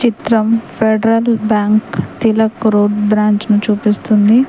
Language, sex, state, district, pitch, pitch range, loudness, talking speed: Telugu, female, Telangana, Mahabubabad, 215 Hz, 210-225 Hz, -13 LUFS, 105 wpm